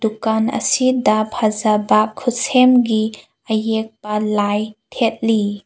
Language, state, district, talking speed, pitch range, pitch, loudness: Manipuri, Manipur, Imphal West, 75 wpm, 215-235 Hz, 220 Hz, -17 LUFS